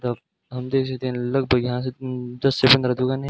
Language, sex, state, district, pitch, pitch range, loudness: Hindi, male, Rajasthan, Bikaner, 130 Hz, 125-135 Hz, -22 LUFS